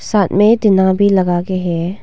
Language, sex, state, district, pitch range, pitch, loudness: Hindi, female, Arunachal Pradesh, Longding, 180-205 Hz, 190 Hz, -13 LUFS